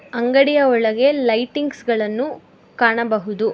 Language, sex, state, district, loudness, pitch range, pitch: Kannada, female, Karnataka, Bangalore, -18 LUFS, 225-275 Hz, 240 Hz